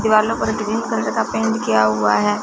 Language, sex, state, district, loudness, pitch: Hindi, female, Punjab, Fazilka, -18 LUFS, 210 Hz